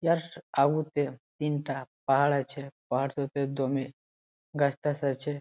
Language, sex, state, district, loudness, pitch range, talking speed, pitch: Bengali, male, West Bengal, Jalpaiguri, -30 LUFS, 135-145 Hz, 110 wpm, 140 Hz